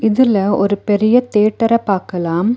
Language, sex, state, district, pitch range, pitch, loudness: Tamil, female, Tamil Nadu, Nilgiris, 195-230 Hz, 210 Hz, -15 LUFS